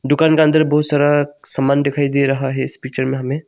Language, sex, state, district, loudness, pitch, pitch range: Hindi, male, Arunachal Pradesh, Longding, -16 LUFS, 140 Hz, 135-150 Hz